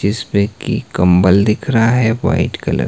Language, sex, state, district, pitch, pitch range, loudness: Hindi, male, Himachal Pradesh, Shimla, 100 Hz, 95-115 Hz, -14 LUFS